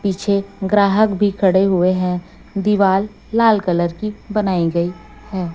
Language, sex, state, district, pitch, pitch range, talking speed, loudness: Hindi, female, Chhattisgarh, Raipur, 195 Hz, 180-205 Hz, 140 wpm, -17 LUFS